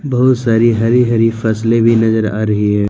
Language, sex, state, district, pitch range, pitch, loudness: Hindi, male, Jharkhand, Deoghar, 110-115 Hz, 115 Hz, -13 LUFS